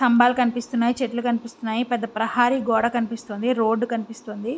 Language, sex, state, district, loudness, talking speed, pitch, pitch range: Telugu, female, Andhra Pradesh, Visakhapatnam, -22 LUFS, 130 wpm, 235 Hz, 225-245 Hz